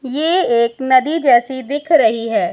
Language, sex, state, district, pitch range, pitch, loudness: Hindi, male, Punjab, Pathankot, 240-315 Hz, 265 Hz, -15 LUFS